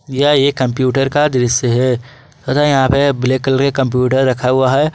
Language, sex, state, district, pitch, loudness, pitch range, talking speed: Hindi, male, Jharkhand, Garhwa, 130 Hz, -14 LUFS, 130-140 Hz, 145 wpm